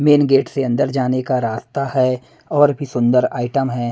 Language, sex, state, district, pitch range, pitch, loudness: Hindi, male, Punjab, Pathankot, 125-140 Hz, 130 Hz, -18 LUFS